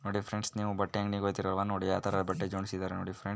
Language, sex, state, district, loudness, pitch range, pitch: Kannada, female, Karnataka, Mysore, -34 LUFS, 95-100 Hz, 100 Hz